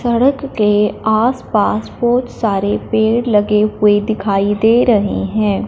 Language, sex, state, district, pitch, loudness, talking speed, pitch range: Hindi, female, Punjab, Fazilka, 215 Hz, -15 LUFS, 135 wpm, 210-240 Hz